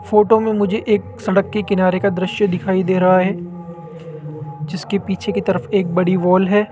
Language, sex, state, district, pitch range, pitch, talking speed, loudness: Hindi, male, Rajasthan, Jaipur, 180-205 Hz, 190 Hz, 190 wpm, -17 LUFS